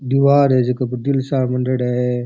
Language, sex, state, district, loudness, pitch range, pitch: Rajasthani, male, Rajasthan, Churu, -17 LUFS, 125-135 Hz, 130 Hz